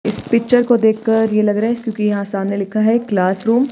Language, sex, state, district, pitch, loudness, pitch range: Hindi, female, Himachal Pradesh, Shimla, 220 Hz, -16 LUFS, 205-230 Hz